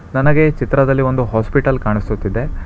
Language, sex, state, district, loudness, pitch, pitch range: Kannada, male, Karnataka, Bangalore, -16 LUFS, 125 Hz, 105-135 Hz